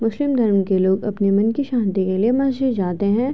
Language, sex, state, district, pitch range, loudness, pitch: Hindi, female, Uttar Pradesh, Gorakhpur, 195-255 Hz, -19 LUFS, 210 Hz